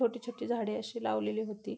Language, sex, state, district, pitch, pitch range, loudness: Marathi, female, Maharashtra, Pune, 220 Hz, 210-240 Hz, -35 LUFS